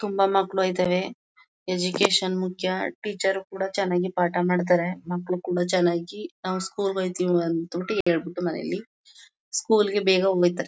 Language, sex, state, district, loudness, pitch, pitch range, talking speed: Kannada, female, Karnataka, Mysore, -25 LUFS, 185 Hz, 180-195 Hz, 135 wpm